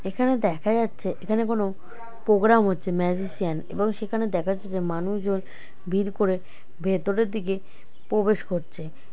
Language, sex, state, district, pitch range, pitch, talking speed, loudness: Bengali, male, West Bengal, Dakshin Dinajpur, 180-215 Hz, 195 Hz, 125 wpm, -25 LUFS